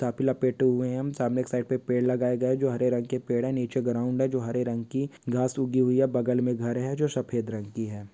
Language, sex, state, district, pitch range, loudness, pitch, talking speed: Hindi, male, Uttar Pradesh, Etah, 120-130 Hz, -27 LUFS, 125 Hz, 280 wpm